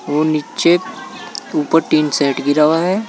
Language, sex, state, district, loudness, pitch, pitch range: Hindi, male, Uttar Pradesh, Saharanpur, -15 LUFS, 155 Hz, 150-180 Hz